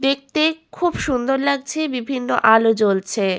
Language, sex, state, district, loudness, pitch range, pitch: Bengali, female, West Bengal, Malda, -19 LUFS, 225-300 Hz, 265 Hz